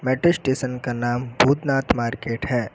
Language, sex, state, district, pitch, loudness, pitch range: Hindi, male, Uttar Pradesh, Lucknow, 125 Hz, -22 LUFS, 120-135 Hz